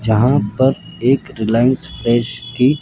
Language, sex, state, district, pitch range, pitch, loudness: Hindi, male, Rajasthan, Jaipur, 115-130 Hz, 125 Hz, -16 LUFS